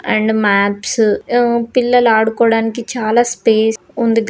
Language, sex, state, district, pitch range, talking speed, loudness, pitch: Telugu, female, Andhra Pradesh, Guntur, 220-235 Hz, 125 wpm, -14 LUFS, 225 Hz